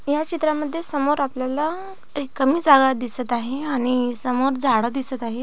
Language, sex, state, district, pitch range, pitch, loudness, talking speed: Marathi, female, Maharashtra, Pune, 250-300 Hz, 270 Hz, -21 LUFS, 145 wpm